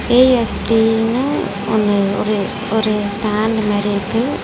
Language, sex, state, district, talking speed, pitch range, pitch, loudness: Tamil, female, Tamil Nadu, Chennai, 95 wpm, 205-225 Hz, 215 Hz, -16 LUFS